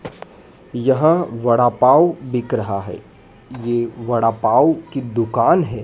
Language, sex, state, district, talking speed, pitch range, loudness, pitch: Hindi, male, Madhya Pradesh, Dhar, 125 wpm, 115-135 Hz, -17 LUFS, 120 Hz